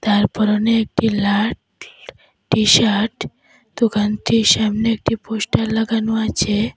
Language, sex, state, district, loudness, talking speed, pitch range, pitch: Bengali, female, Assam, Hailakandi, -17 LUFS, 95 wpm, 210-225 Hz, 220 Hz